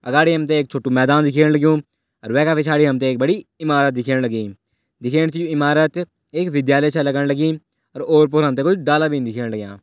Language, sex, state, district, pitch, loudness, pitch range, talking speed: Garhwali, male, Uttarakhand, Tehri Garhwal, 150 Hz, -18 LUFS, 130-155 Hz, 200 wpm